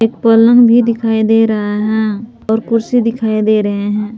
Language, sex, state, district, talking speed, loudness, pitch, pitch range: Hindi, female, Jharkhand, Palamu, 185 wpm, -12 LUFS, 225 Hz, 215-230 Hz